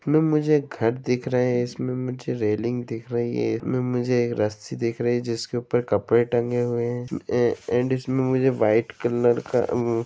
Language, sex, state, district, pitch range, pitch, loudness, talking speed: Hindi, male, Jharkhand, Sahebganj, 115-125 Hz, 120 Hz, -24 LUFS, 195 wpm